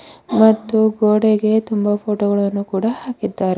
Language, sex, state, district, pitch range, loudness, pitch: Kannada, female, Karnataka, Bidar, 205-220 Hz, -17 LUFS, 215 Hz